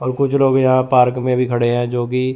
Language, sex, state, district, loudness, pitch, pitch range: Hindi, male, Chandigarh, Chandigarh, -16 LUFS, 125 Hz, 125-130 Hz